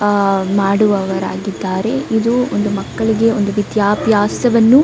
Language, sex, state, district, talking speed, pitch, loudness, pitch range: Kannada, female, Karnataka, Dakshina Kannada, 85 wpm, 205 Hz, -15 LUFS, 200-225 Hz